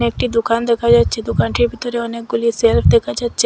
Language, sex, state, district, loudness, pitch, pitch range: Bengali, female, Assam, Hailakandi, -16 LUFS, 235 Hz, 230-240 Hz